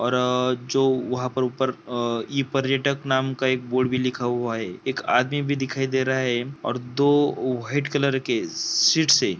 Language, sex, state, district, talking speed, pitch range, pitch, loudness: Hindi, male, Jharkhand, Sahebganj, 185 wpm, 125-135 Hz, 130 Hz, -23 LUFS